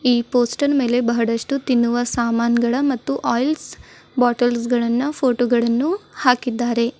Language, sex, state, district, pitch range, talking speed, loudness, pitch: Kannada, female, Karnataka, Bidar, 235-265 Hz, 110 wpm, -19 LUFS, 245 Hz